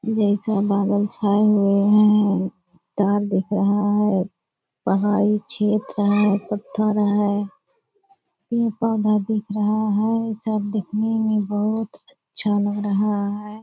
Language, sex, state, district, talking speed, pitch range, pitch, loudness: Hindi, female, Bihar, Purnia, 115 wpm, 205-215 Hz, 210 Hz, -21 LUFS